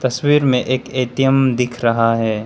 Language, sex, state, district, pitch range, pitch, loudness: Hindi, male, Arunachal Pradesh, Lower Dibang Valley, 115-135 Hz, 125 Hz, -16 LUFS